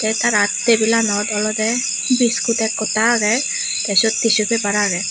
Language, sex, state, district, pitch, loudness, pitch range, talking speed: Chakma, female, Tripura, West Tripura, 220 Hz, -16 LUFS, 210-230 Hz, 150 wpm